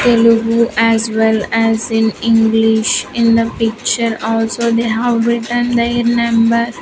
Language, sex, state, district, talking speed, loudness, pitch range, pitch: English, female, Andhra Pradesh, Sri Satya Sai, 130 wpm, -14 LUFS, 225-235 Hz, 230 Hz